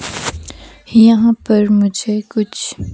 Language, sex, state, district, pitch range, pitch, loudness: Hindi, female, Himachal Pradesh, Shimla, 195-225 Hz, 210 Hz, -14 LUFS